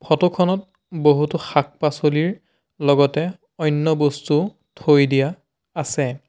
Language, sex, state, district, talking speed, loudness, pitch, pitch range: Assamese, male, Assam, Sonitpur, 105 wpm, -20 LUFS, 150 Hz, 145-170 Hz